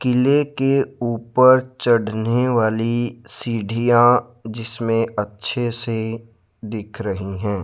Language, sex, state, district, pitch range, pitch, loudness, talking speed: Hindi, male, Rajasthan, Jaipur, 110-120 Hz, 115 Hz, -19 LUFS, 95 wpm